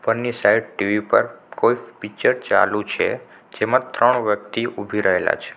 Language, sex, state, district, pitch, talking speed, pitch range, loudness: Gujarati, male, Gujarat, Navsari, 105 Hz, 140 wpm, 105-115 Hz, -20 LUFS